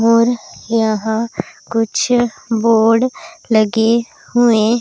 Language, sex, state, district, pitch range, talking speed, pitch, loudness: Hindi, female, Punjab, Pathankot, 220-240 Hz, 75 wpm, 230 Hz, -15 LUFS